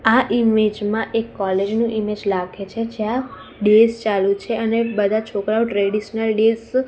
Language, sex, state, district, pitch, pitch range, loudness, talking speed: Gujarati, female, Gujarat, Gandhinagar, 220 Hz, 205-230 Hz, -19 LUFS, 165 wpm